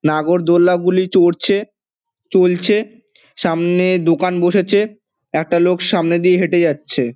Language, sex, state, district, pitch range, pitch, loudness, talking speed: Bengali, male, West Bengal, Dakshin Dinajpur, 170-200 Hz, 180 Hz, -15 LUFS, 125 wpm